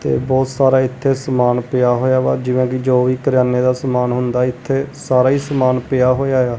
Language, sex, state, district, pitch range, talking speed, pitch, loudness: Punjabi, male, Punjab, Kapurthala, 125-130 Hz, 210 wpm, 130 Hz, -16 LUFS